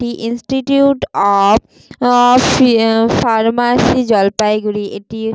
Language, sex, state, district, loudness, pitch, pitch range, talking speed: Bengali, female, West Bengal, Jalpaiguri, -13 LUFS, 230 Hz, 215-245 Hz, 80 wpm